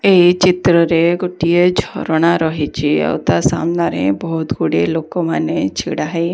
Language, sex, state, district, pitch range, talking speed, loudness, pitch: Odia, female, Odisha, Khordha, 155-175 Hz, 140 wpm, -15 LUFS, 165 Hz